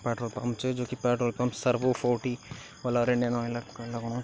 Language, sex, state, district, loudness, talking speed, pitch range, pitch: Garhwali, male, Uttarakhand, Tehri Garhwal, -30 LUFS, 210 wpm, 120-125 Hz, 120 Hz